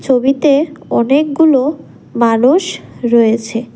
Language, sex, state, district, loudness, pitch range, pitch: Bengali, female, Tripura, West Tripura, -13 LUFS, 235-300 Hz, 265 Hz